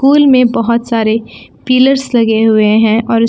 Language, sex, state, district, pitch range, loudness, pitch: Hindi, female, Jharkhand, Palamu, 220-255 Hz, -10 LUFS, 230 Hz